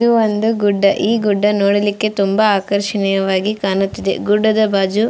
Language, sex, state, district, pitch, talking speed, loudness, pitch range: Kannada, female, Karnataka, Dharwad, 205 Hz, 140 wpm, -15 LUFS, 200-215 Hz